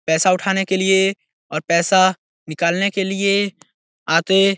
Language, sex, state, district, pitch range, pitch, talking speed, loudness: Hindi, male, Bihar, Araria, 170-195 Hz, 190 Hz, 145 wpm, -18 LUFS